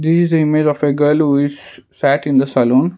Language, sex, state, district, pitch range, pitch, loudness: English, male, Karnataka, Bangalore, 140-155 Hz, 145 Hz, -15 LUFS